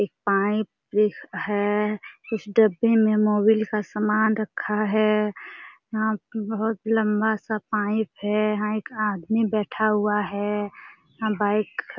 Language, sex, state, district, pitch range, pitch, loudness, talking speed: Hindi, female, Jharkhand, Sahebganj, 210-220 Hz, 215 Hz, -24 LUFS, 140 wpm